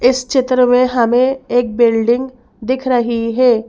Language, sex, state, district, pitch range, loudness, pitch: Hindi, female, Madhya Pradesh, Bhopal, 235-255 Hz, -14 LUFS, 245 Hz